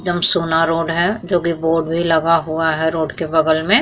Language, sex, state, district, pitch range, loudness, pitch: Hindi, female, Uttar Pradesh, Muzaffarnagar, 160-175 Hz, -17 LUFS, 165 Hz